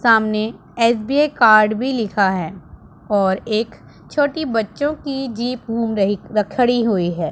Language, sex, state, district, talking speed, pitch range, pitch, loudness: Hindi, female, Punjab, Pathankot, 140 wpm, 205-250 Hz, 225 Hz, -18 LUFS